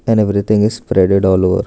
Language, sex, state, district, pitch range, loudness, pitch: English, male, Karnataka, Bangalore, 95-105 Hz, -14 LUFS, 100 Hz